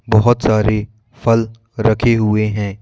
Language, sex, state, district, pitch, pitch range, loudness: Hindi, male, Madhya Pradesh, Bhopal, 110 Hz, 105-115 Hz, -16 LUFS